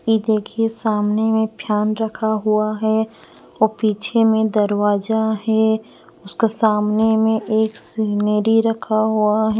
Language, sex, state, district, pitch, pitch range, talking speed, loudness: Hindi, female, Punjab, Pathankot, 220 Hz, 215-220 Hz, 130 wpm, -18 LUFS